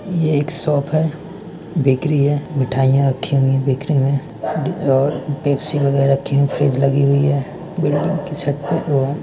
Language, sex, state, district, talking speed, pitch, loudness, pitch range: Hindi, male, West Bengal, Purulia, 170 wpm, 145 Hz, -18 LUFS, 135-155 Hz